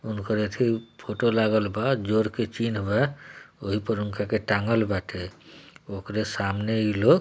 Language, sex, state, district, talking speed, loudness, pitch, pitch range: Bhojpuri, male, Bihar, East Champaran, 160 wpm, -26 LUFS, 110 Hz, 105-115 Hz